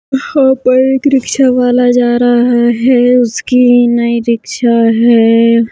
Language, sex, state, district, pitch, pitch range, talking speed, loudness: Hindi, female, Chhattisgarh, Bastar, 245 Hz, 235-255 Hz, 115 wpm, -9 LUFS